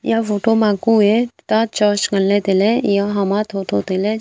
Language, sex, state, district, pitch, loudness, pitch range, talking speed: Wancho, female, Arunachal Pradesh, Longding, 205 Hz, -17 LUFS, 200-220 Hz, 185 wpm